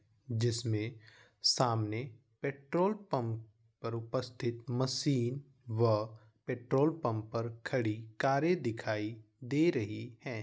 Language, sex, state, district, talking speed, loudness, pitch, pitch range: Hindi, male, Bihar, Vaishali, 100 wpm, -34 LUFS, 120 Hz, 110-135 Hz